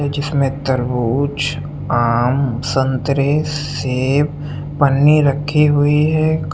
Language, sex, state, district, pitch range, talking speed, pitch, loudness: Hindi, male, Uttar Pradesh, Lucknow, 135-145 Hz, 80 wpm, 140 Hz, -16 LUFS